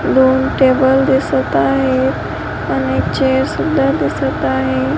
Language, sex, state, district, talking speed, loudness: Marathi, female, Maharashtra, Washim, 120 wpm, -15 LUFS